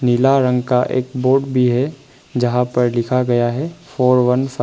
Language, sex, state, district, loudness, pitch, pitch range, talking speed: Hindi, male, Arunachal Pradesh, Papum Pare, -17 LUFS, 125 Hz, 125-135 Hz, 210 wpm